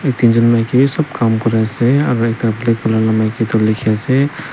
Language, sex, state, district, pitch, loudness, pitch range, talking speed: Nagamese, male, Nagaland, Dimapur, 115 Hz, -14 LUFS, 110-130 Hz, 200 wpm